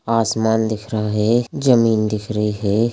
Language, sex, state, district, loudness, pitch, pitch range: Hindi, male, Bihar, Sitamarhi, -18 LUFS, 110 Hz, 105-115 Hz